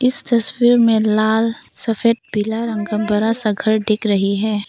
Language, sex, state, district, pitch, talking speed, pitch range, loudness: Hindi, female, Arunachal Pradesh, Papum Pare, 220 Hz, 180 wpm, 215-230 Hz, -17 LUFS